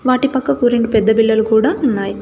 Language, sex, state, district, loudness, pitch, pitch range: Telugu, female, Telangana, Komaram Bheem, -14 LUFS, 230 Hz, 220-260 Hz